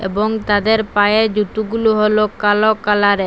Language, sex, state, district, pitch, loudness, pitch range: Bengali, female, Assam, Hailakandi, 210 Hz, -15 LUFS, 205-220 Hz